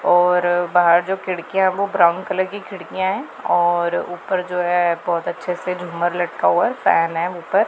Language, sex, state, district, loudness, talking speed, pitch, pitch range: Hindi, female, Punjab, Pathankot, -19 LUFS, 185 wpm, 175 Hz, 175-185 Hz